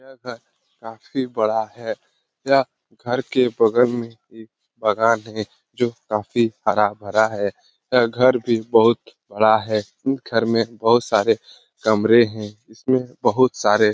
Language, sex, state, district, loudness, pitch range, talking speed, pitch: Hindi, male, Bihar, Lakhisarai, -20 LUFS, 110-125 Hz, 145 wpm, 115 Hz